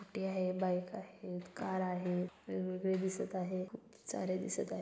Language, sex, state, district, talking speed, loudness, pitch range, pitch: Marathi, female, Maharashtra, Solapur, 160 wpm, -39 LUFS, 180-190 Hz, 185 Hz